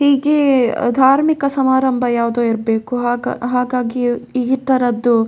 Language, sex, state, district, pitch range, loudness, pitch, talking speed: Kannada, female, Karnataka, Dakshina Kannada, 240-265 Hz, -16 LUFS, 250 Hz, 115 wpm